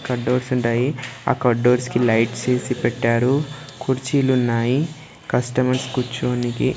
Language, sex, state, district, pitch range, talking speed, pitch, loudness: Telugu, male, Andhra Pradesh, Sri Satya Sai, 120-130 Hz, 105 wpm, 125 Hz, -20 LUFS